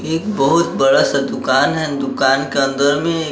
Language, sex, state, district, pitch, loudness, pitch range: Hindi, male, Bihar, West Champaran, 140 Hz, -16 LUFS, 135-160 Hz